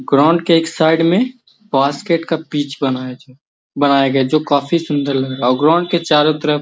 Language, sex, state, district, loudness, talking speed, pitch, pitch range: Magahi, male, Bihar, Gaya, -15 LUFS, 225 wpm, 150 Hz, 140-165 Hz